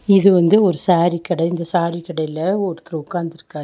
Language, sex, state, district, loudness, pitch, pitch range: Tamil, female, Tamil Nadu, Nilgiris, -18 LUFS, 175 Hz, 165-190 Hz